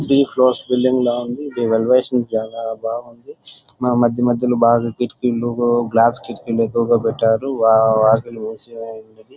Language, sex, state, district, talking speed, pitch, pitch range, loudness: Telugu, male, Andhra Pradesh, Chittoor, 100 wpm, 120 Hz, 115-125 Hz, -17 LUFS